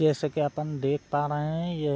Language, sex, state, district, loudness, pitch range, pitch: Hindi, male, Bihar, Sitamarhi, -28 LUFS, 145-155 Hz, 150 Hz